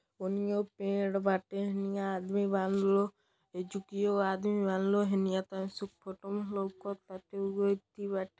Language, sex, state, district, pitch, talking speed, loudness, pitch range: Bhojpuri, male, Uttar Pradesh, Deoria, 195 Hz, 120 wpm, -33 LUFS, 190-200 Hz